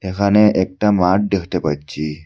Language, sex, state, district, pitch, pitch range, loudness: Bengali, male, Assam, Hailakandi, 95 Hz, 80-100 Hz, -17 LUFS